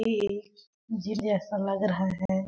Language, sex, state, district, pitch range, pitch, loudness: Hindi, female, Chhattisgarh, Balrampur, 195-210 Hz, 205 Hz, -30 LUFS